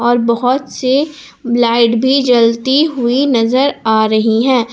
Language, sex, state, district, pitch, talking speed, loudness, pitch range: Hindi, female, Jharkhand, Palamu, 240 Hz, 140 wpm, -13 LUFS, 230-265 Hz